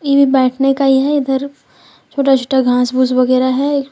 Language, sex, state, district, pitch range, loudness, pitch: Hindi, female, Jharkhand, Deoghar, 255-280 Hz, -13 LUFS, 270 Hz